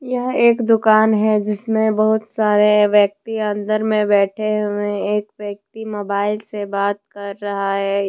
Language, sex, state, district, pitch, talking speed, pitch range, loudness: Hindi, female, Jharkhand, Deoghar, 210 Hz, 150 wpm, 205-215 Hz, -18 LUFS